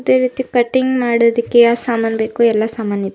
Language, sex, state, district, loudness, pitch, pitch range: Kannada, female, Karnataka, Bidar, -15 LUFS, 235 Hz, 220-245 Hz